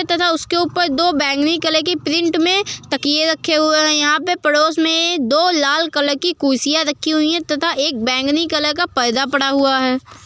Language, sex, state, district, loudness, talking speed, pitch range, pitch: Hindi, female, Uttar Pradesh, Muzaffarnagar, -16 LUFS, 200 wpm, 285-335 Hz, 310 Hz